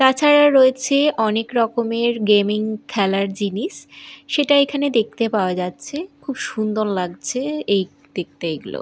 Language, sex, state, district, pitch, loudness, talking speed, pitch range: Bengali, female, Odisha, Malkangiri, 225 Hz, -19 LUFS, 120 wpm, 205-275 Hz